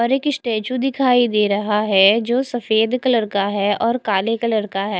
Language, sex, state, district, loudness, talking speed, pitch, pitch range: Hindi, female, Odisha, Khordha, -18 LUFS, 180 wpm, 225 Hz, 205-245 Hz